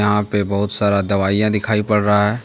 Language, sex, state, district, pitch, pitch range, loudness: Hindi, male, Jharkhand, Deoghar, 105 Hz, 100-105 Hz, -17 LUFS